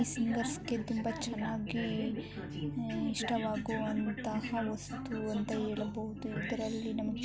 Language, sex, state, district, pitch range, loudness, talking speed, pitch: Kannada, male, Karnataka, Mysore, 215-235 Hz, -36 LUFS, 85 wpm, 225 Hz